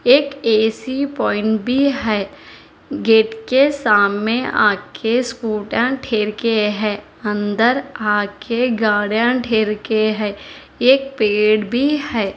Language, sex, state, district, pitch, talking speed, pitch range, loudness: Hindi, female, Telangana, Hyderabad, 225 Hz, 120 wpm, 210-255 Hz, -17 LUFS